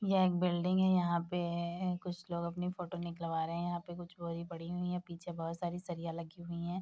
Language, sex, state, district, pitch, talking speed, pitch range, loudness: Hindi, female, Bihar, Bhagalpur, 175 Hz, 245 wpm, 170-180 Hz, -37 LUFS